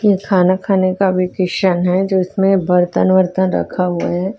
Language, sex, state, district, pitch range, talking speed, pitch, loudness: Hindi, female, Chhattisgarh, Raipur, 180-195 Hz, 180 wpm, 185 Hz, -15 LUFS